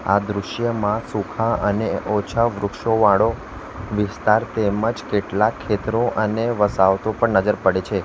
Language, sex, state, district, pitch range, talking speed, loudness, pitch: Gujarati, male, Gujarat, Valsad, 100-115 Hz, 125 wpm, -20 LUFS, 105 Hz